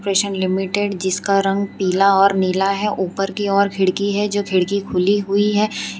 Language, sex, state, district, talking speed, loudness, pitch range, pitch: Hindi, female, Gujarat, Valsad, 170 wpm, -18 LUFS, 190-200 Hz, 195 Hz